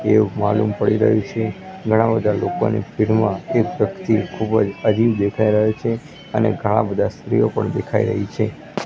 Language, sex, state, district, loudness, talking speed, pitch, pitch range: Gujarati, male, Gujarat, Gandhinagar, -19 LUFS, 160 wpm, 110 Hz, 105-110 Hz